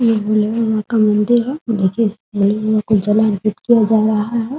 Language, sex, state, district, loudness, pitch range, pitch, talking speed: Hindi, female, Bihar, Muzaffarpur, -16 LUFS, 210-230 Hz, 215 Hz, 220 wpm